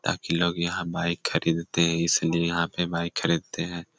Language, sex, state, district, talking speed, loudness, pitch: Hindi, male, Jharkhand, Sahebganj, 180 wpm, -26 LUFS, 85 Hz